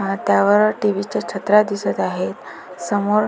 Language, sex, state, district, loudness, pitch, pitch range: Marathi, female, Maharashtra, Pune, -18 LUFS, 205 Hz, 195-210 Hz